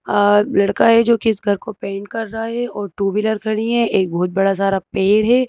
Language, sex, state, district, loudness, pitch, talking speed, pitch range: Hindi, female, Madhya Pradesh, Bhopal, -17 LUFS, 205 Hz, 250 wpm, 195-225 Hz